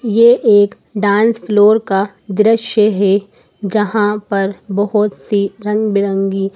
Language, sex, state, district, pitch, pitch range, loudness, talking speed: Hindi, female, Madhya Pradesh, Bhopal, 205 Hz, 200-215 Hz, -14 LUFS, 120 wpm